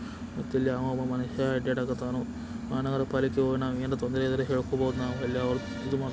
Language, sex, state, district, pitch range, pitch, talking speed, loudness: Kannada, male, Karnataka, Belgaum, 125-130 Hz, 130 Hz, 155 wpm, -30 LUFS